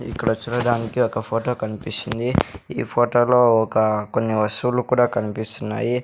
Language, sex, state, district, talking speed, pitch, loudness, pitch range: Telugu, male, Andhra Pradesh, Sri Satya Sai, 120 wpm, 115 Hz, -21 LUFS, 110-120 Hz